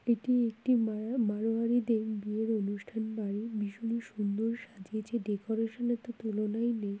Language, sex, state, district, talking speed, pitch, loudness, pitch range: Bengali, female, West Bengal, Kolkata, 135 wpm, 225 Hz, -33 LUFS, 210-235 Hz